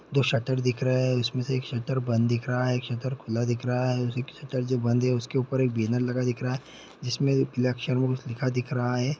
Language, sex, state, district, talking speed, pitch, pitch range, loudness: Hindi, male, Bihar, Lakhisarai, 260 wpm, 125 Hz, 125-130 Hz, -27 LUFS